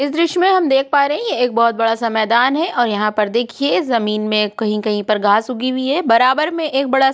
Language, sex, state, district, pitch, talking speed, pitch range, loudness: Hindi, female, Uttarakhand, Tehri Garhwal, 240 Hz, 280 wpm, 215-275 Hz, -16 LUFS